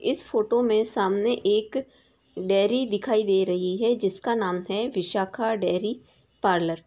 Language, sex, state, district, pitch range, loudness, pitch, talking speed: Hindi, female, Bihar, Samastipur, 190-240 Hz, -25 LUFS, 215 Hz, 150 wpm